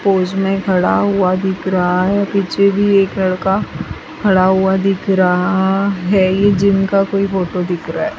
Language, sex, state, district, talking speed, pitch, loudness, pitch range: Hindi, female, Bihar, West Champaran, 175 wpm, 190 Hz, -15 LUFS, 185-195 Hz